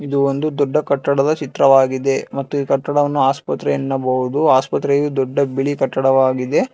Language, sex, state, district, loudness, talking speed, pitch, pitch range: Kannada, male, Karnataka, Bangalore, -17 LUFS, 125 wpm, 140 Hz, 135-145 Hz